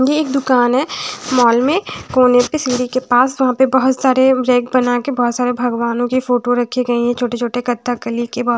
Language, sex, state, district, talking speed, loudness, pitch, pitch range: Hindi, female, Bihar, West Champaran, 225 wpm, -15 LUFS, 250 Hz, 245-260 Hz